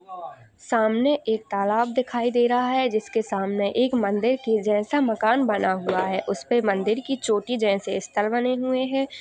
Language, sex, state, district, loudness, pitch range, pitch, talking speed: Hindi, female, Uttar Pradesh, Budaun, -23 LUFS, 205-255 Hz, 230 Hz, 175 wpm